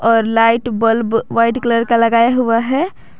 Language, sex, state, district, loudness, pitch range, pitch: Hindi, female, Jharkhand, Garhwa, -14 LUFS, 230-235 Hz, 230 Hz